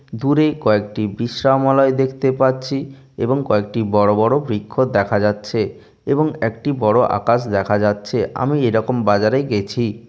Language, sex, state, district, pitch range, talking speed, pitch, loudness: Bengali, male, West Bengal, Jalpaiguri, 105-135 Hz, 130 wpm, 120 Hz, -18 LUFS